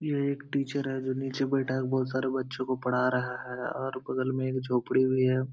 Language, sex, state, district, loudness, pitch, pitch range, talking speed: Hindi, male, Uttar Pradesh, Hamirpur, -30 LUFS, 130 Hz, 130-135 Hz, 240 wpm